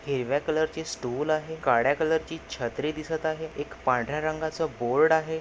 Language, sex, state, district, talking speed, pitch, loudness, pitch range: Marathi, male, Maharashtra, Nagpur, 165 wpm, 155 Hz, -27 LUFS, 140-160 Hz